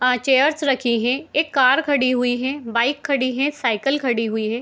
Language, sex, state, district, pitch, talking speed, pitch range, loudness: Hindi, female, Bihar, Gopalganj, 255 Hz, 235 wpm, 245-280 Hz, -19 LUFS